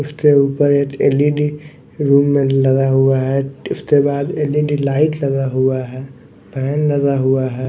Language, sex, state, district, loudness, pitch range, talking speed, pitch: Hindi, male, Maharashtra, Mumbai Suburban, -16 LUFS, 135-145 Hz, 155 wpm, 140 Hz